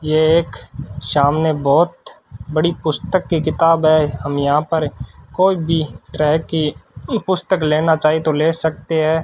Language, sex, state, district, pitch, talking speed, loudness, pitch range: Hindi, male, Rajasthan, Bikaner, 155 Hz, 150 wpm, -17 LUFS, 145-165 Hz